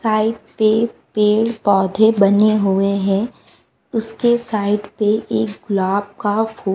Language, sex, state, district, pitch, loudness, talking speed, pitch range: Hindi, female, Bihar, West Champaran, 210 Hz, -17 LUFS, 125 wpm, 200-220 Hz